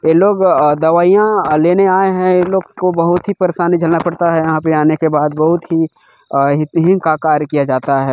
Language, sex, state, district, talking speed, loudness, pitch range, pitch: Hindi, male, Chhattisgarh, Bilaspur, 235 wpm, -13 LUFS, 155-180 Hz, 165 Hz